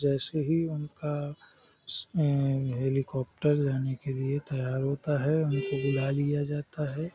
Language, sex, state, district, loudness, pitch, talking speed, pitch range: Hindi, male, Uttar Pradesh, Hamirpur, -29 LUFS, 140 Hz, 145 wpm, 135-150 Hz